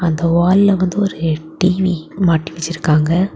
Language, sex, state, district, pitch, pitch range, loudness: Tamil, female, Tamil Nadu, Kanyakumari, 170 Hz, 160-185 Hz, -16 LUFS